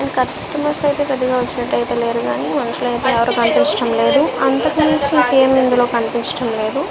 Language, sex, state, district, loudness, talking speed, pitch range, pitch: Telugu, female, Andhra Pradesh, Visakhapatnam, -15 LUFS, 140 wpm, 235-275 Hz, 255 Hz